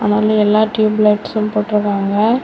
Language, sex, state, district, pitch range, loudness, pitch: Tamil, female, Tamil Nadu, Kanyakumari, 210-215 Hz, -15 LUFS, 210 Hz